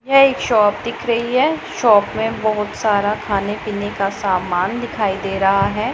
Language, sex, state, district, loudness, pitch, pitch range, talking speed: Hindi, female, Punjab, Pathankot, -18 LUFS, 210 Hz, 200-235 Hz, 180 wpm